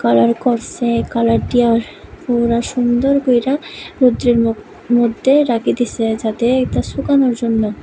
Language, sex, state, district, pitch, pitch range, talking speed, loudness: Bengali, female, Tripura, West Tripura, 240 Hz, 230-250 Hz, 120 wpm, -16 LUFS